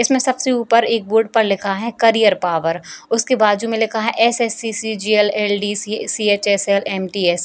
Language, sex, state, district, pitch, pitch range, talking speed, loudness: Hindi, female, Bihar, Jamui, 215 Hz, 205-230 Hz, 170 wpm, -17 LUFS